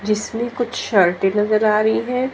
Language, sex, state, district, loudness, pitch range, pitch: Hindi, female, Haryana, Jhajjar, -18 LUFS, 210-240 Hz, 215 Hz